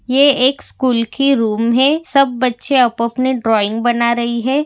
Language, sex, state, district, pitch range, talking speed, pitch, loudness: Hindi, female, Maharashtra, Pune, 235-275 Hz, 180 wpm, 255 Hz, -15 LUFS